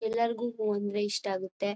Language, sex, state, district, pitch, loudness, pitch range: Kannada, female, Karnataka, Mysore, 205 Hz, -31 LUFS, 200-225 Hz